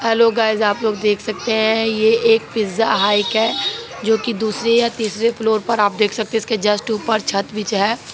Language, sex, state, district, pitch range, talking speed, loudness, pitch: Hindi, female, Bihar, Begusarai, 210-225 Hz, 200 wpm, -17 LUFS, 220 Hz